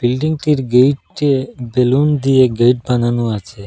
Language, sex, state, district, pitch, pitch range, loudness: Bengali, male, Assam, Hailakandi, 125 Hz, 120-135 Hz, -15 LUFS